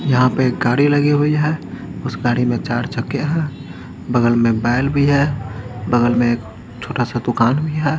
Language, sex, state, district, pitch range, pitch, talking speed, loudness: Hindi, male, Haryana, Charkhi Dadri, 120-145 Hz, 125 Hz, 190 wpm, -18 LUFS